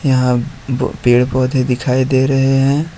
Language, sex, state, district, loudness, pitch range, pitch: Hindi, male, Jharkhand, Ranchi, -15 LUFS, 125-135 Hz, 130 Hz